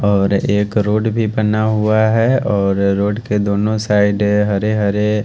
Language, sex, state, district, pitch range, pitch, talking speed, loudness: Hindi, male, Haryana, Charkhi Dadri, 100-110 Hz, 105 Hz, 160 wpm, -15 LUFS